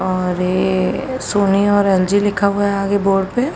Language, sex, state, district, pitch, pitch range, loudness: Hindi, female, Uttar Pradesh, Hamirpur, 200 Hz, 190-205 Hz, -16 LUFS